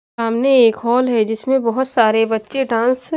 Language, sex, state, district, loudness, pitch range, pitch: Hindi, female, Haryana, Jhajjar, -16 LUFS, 225-260 Hz, 235 Hz